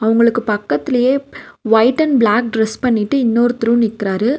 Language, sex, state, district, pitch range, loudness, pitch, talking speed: Tamil, female, Tamil Nadu, Nilgiris, 220-250 Hz, -15 LUFS, 235 Hz, 125 wpm